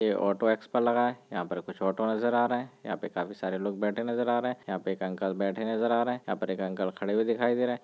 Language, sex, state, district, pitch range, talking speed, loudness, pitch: Hindi, male, Bihar, Darbhanga, 95-120 Hz, 320 wpm, -30 LUFS, 110 Hz